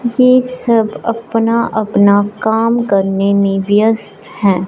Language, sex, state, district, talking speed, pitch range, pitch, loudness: Hindi, male, Punjab, Fazilka, 115 wpm, 200-230 Hz, 220 Hz, -13 LUFS